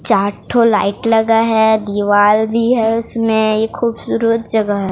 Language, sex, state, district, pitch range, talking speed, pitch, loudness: Hindi, female, Odisha, Sambalpur, 210-230 Hz, 145 wpm, 220 Hz, -14 LUFS